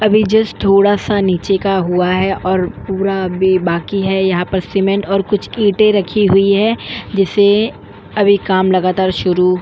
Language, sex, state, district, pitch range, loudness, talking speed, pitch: Hindi, female, Goa, North and South Goa, 185-205 Hz, -14 LUFS, 175 wpm, 195 Hz